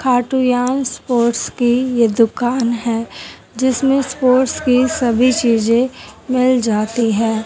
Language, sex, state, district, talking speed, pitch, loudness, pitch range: Hindi, female, Haryana, Jhajjar, 120 wpm, 245 Hz, -16 LUFS, 230-255 Hz